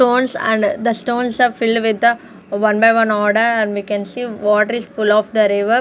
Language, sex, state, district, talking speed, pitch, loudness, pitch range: English, female, Punjab, Fazilka, 225 wpm, 220 Hz, -16 LUFS, 210-235 Hz